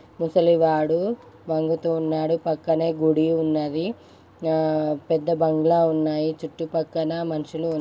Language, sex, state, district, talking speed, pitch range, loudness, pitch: Telugu, male, Andhra Pradesh, Guntur, 90 wpm, 155-165 Hz, -23 LUFS, 160 Hz